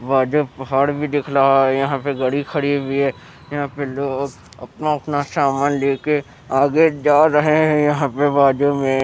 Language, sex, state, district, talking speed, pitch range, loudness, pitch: Hindi, male, Bihar, West Champaran, 180 wpm, 135-145 Hz, -18 LUFS, 140 Hz